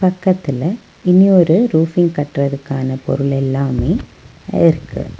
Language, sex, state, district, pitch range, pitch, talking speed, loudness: Tamil, female, Tamil Nadu, Nilgiris, 135-185 Hz, 160 Hz, 80 wpm, -15 LUFS